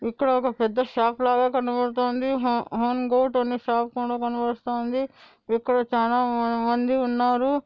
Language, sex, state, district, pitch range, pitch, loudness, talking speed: Telugu, female, Andhra Pradesh, Anantapur, 235-255 Hz, 245 Hz, -24 LUFS, 125 wpm